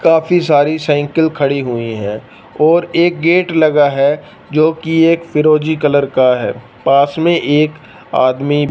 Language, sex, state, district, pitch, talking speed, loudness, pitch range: Hindi, male, Punjab, Fazilka, 150 Hz, 150 wpm, -13 LUFS, 140-165 Hz